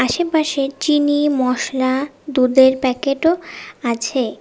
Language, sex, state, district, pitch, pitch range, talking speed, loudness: Bengali, female, West Bengal, Cooch Behar, 275 Hz, 255-295 Hz, 80 wpm, -17 LUFS